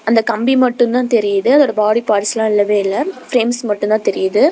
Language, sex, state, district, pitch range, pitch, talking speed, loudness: Tamil, female, Tamil Nadu, Namakkal, 210-250 Hz, 230 Hz, 200 wpm, -15 LUFS